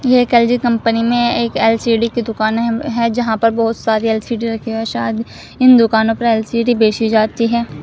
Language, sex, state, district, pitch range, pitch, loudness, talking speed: Hindi, female, Uttar Pradesh, Shamli, 225-235 Hz, 230 Hz, -15 LUFS, 200 wpm